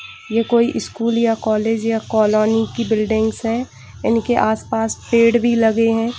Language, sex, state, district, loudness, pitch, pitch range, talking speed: Hindi, female, Bihar, Kishanganj, -17 LUFS, 225 Hz, 220-230 Hz, 155 wpm